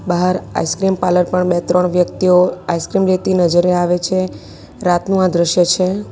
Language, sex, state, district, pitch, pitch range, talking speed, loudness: Gujarati, female, Gujarat, Valsad, 180 Hz, 175-185 Hz, 155 wpm, -15 LUFS